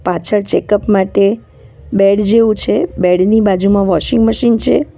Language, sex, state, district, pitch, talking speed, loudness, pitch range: Gujarati, female, Gujarat, Valsad, 200 Hz, 145 wpm, -12 LUFS, 190-220 Hz